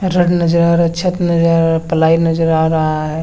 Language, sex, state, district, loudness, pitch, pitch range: Hindi, male, Jharkhand, Sahebganj, -14 LUFS, 165 Hz, 160-170 Hz